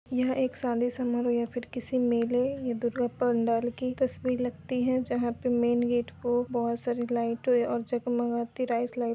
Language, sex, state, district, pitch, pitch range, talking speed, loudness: Hindi, female, Uttar Pradesh, Budaun, 245 Hz, 240-250 Hz, 185 wpm, -29 LUFS